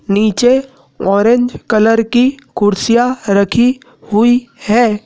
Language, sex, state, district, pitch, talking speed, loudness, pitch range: Hindi, male, Madhya Pradesh, Dhar, 235 Hz, 95 wpm, -13 LUFS, 210-245 Hz